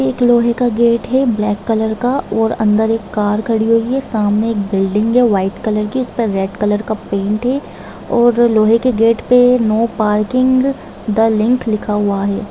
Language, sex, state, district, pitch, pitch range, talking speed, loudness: Hindi, female, Jharkhand, Jamtara, 225 Hz, 210-240 Hz, 200 wpm, -15 LUFS